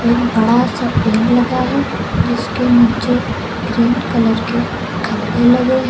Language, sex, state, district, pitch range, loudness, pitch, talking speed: Hindi, female, Uttar Pradesh, Lucknow, 230-245 Hz, -15 LUFS, 235 Hz, 140 wpm